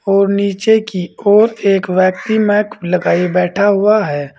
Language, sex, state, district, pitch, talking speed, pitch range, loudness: Hindi, male, Uttar Pradesh, Saharanpur, 200 Hz, 150 wpm, 180-210 Hz, -13 LUFS